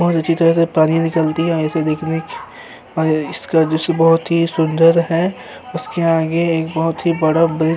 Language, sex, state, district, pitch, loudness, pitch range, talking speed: Hindi, male, Uttar Pradesh, Hamirpur, 165 Hz, -16 LUFS, 160-165 Hz, 200 wpm